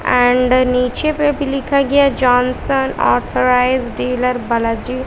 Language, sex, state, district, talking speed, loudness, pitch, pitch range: Hindi, female, Bihar, West Champaran, 120 wpm, -15 LUFS, 250 Hz, 245-275 Hz